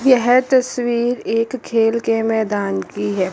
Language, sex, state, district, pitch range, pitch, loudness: Hindi, female, Chandigarh, Chandigarh, 220-250 Hz, 230 Hz, -18 LUFS